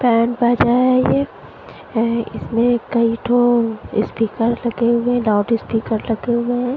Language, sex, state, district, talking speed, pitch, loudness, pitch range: Hindi, female, Punjab, Fazilka, 140 wpm, 235 Hz, -18 LUFS, 230-245 Hz